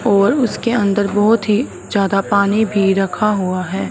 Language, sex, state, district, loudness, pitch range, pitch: Hindi, male, Punjab, Fazilka, -16 LUFS, 195-215 Hz, 205 Hz